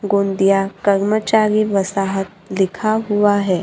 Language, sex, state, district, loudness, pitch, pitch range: Hindi, female, Maharashtra, Gondia, -17 LUFS, 200 Hz, 195-210 Hz